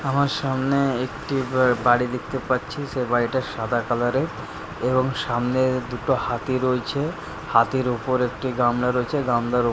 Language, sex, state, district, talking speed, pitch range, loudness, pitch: Bengali, male, West Bengal, Purulia, 140 wpm, 120-135 Hz, -23 LUFS, 130 Hz